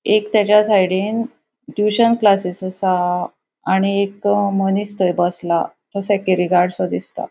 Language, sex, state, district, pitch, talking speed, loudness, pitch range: Konkani, female, Goa, North and South Goa, 200 Hz, 125 wpm, -17 LUFS, 185-210 Hz